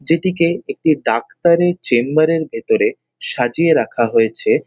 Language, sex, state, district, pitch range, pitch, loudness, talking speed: Bengali, male, West Bengal, North 24 Parganas, 150-185 Hz, 165 Hz, -16 LUFS, 140 wpm